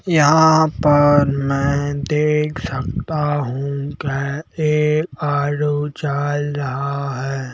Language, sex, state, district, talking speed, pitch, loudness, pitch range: Hindi, male, Madhya Pradesh, Bhopal, 95 wpm, 145 Hz, -18 LUFS, 140-150 Hz